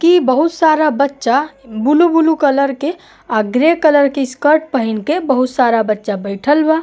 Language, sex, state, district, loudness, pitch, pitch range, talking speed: Bhojpuri, female, Uttar Pradesh, Gorakhpur, -14 LUFS, 280 Hz, 250-315 Hz, 175 wpm